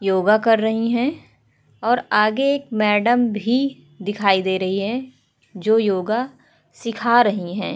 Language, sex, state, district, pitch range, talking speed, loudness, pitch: Hindi, female, Uttar Pradesh, Hamirpur, 200-240 Hz, 140 wpm, -19 LUFS, 220 Hz